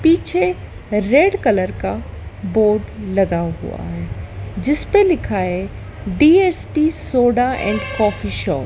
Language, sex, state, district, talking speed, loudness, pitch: Hindi, female, Madhya Pradesh, Dhar, 120 wpm, -17 LUFS, 195 Hz